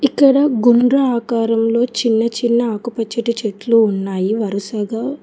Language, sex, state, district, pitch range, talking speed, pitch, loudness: Telugu, female, Telangana, Hyderabad, 220-240 Hz, 105 wpm, 235 Hz, -16 LUFS